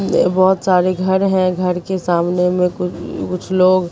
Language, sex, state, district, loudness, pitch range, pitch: Hindi, female, Bihar, Katihar, -16 LUFS, 180-185 Hz, 185 Hz